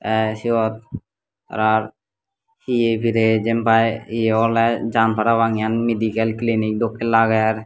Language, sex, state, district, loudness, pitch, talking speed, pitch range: Chakma, male, Tripura, Dhalai, -19 LUFS, 115 Hz, 115 wpm, 110-115 Hz